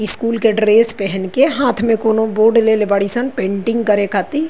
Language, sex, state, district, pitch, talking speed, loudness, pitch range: Bhojpuri, female, Uttar Pradesh, Ghazipur, 220 Hz, 185 wpm, -15 LUFS, 205-230 Hz